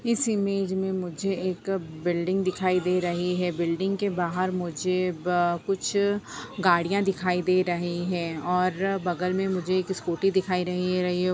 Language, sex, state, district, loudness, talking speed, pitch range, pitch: Hindi, female, Bihar, Darbhanga, -26 LUFS, 170 wpm, 180-190 Hz, 185 Hz